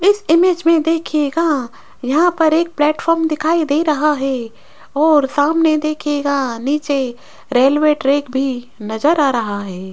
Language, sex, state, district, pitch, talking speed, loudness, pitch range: Hindi, female, Rajasthan, Jaipur, 295 Hz, 140 wpm, -16 LUFS, 270-320 Hz